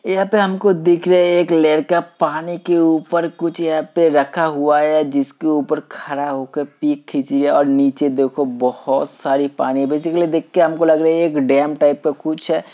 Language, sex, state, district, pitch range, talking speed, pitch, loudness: Hindi, male, Uttar Pradesh, Hamirpur, 145-170 Hz, 205 wpm, 155 Hz, -17 LUFS